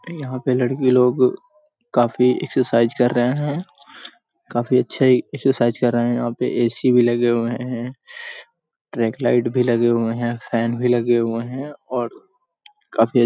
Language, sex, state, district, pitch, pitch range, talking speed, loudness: Hindi, female, Bihar, Sitamarhi, 125 Hz, 120-135 Hz, 165 wpm, -19 LUFS